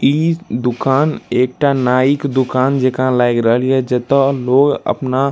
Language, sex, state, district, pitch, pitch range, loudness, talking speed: Maithili, male, Bihar, Darbhanga, 130 Hz, 125-140 Hz, -15 LUFS, 160 wpm